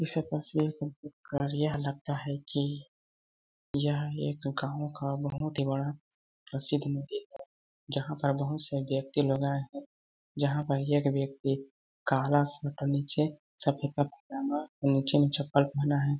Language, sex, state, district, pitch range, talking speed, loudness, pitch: Hindi, male, Chhattisgarh, Balrampur, 140-145 Hz, 155 wpm, -31 LUFS, 145 Hz